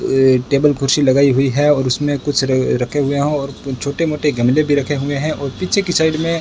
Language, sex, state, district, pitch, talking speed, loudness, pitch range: Hindi, male, Rajasthan, Bikaner, 140 Hz, 245 wpm, -16 LUFS, 135-150 Hz